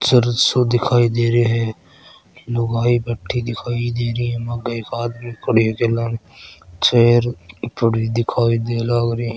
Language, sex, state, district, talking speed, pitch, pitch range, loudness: Marwari, male, Rajasthan, Churu, 135 wpm, 120 Hz, 115-120 Hz, -18 LUFS